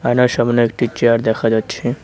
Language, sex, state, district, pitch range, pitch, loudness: Bengali, male, West Bengal, Cooch Behar, 115-120 Hz, 120 Hz, -16 LUFS